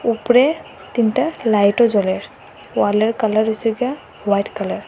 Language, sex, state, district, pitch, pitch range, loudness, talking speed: Bengali, female, Assam, Hailakandi, 220 Hz, 210-245 Hz, -18 LUFS, 135 wpm